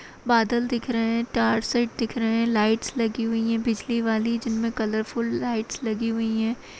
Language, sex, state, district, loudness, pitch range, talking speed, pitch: Kumaoni, female, Uttarakhand, Tehri Garhwal, -25 LUFS, 225-235 Hz, 185 wpm, 230 Hz